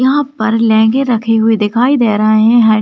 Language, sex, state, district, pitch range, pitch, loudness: Hindi, female, Rajasthan, Churu, 220-245 Hz, 225 Hz, -11 LUFS